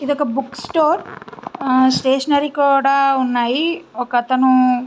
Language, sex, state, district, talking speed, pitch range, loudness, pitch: Telugu, female, Andhra Pradesh, Visakhapatnam, 125 wpm, 255-290 Hz, -17 LUFS, 270 Hz